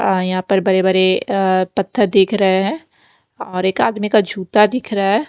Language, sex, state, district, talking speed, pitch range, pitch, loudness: Hindi, female, Maharashtra, Mumbai Suburban, 195 wpm, 185-210 Hz, 195 Hz, -16 LUFS